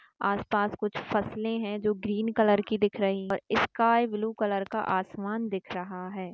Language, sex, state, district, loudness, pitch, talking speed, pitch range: Hindi, female, Bihar, Kishanganj, -29 LUFS, 210 Hz, 190 wpm, 195-215 Hz